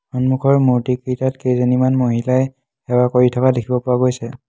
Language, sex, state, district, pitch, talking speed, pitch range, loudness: Assamese, male, Assam, Hailakandi, 125 Hz, 135 wpm, 125-130 Hz, -17 LUFS